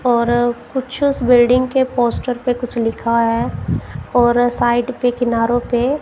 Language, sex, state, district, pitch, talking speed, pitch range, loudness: Hindi, female, Punjab, Kapurthala, 245 Hz, 150 wpm, 240-250 Hz, -17 LUFS